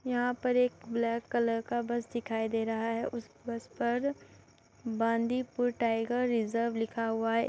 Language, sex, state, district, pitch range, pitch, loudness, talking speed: Hindi, female, Uttar Pradesh, Muzaffarnagar, 230-245 Hz, 235 Hz, -32 LUFS, 160 wpm